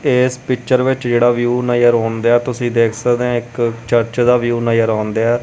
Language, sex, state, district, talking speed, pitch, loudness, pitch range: Punjabi, male, Punjab, Kapurthala, 210 wpm, 120 Hz, -15 LUFS, 115-125 Hz